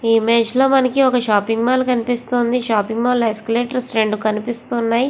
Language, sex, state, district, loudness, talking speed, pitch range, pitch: Telugu, female, Andhra Pradesh, Visakhapatnam, -16 LUFS, 190 wpm, 225-250 Hz, 235 Hz